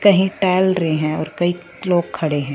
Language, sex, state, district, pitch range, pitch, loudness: Hindi, female, Punjab, Fazilka, 155-185 Hz, 175 Hz, -19 LUFS